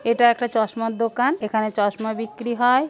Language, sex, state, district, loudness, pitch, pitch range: Bengali, female, West Bengal, Purulia, -22 LUFS, 230 Hz, 220-240 Hz